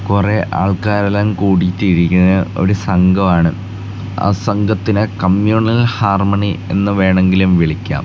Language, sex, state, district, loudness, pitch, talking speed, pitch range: Malayalam, male, Kerala, Kasaragod, -14 LUFS, 100 Hz, 95 wpm, 95-105 Hz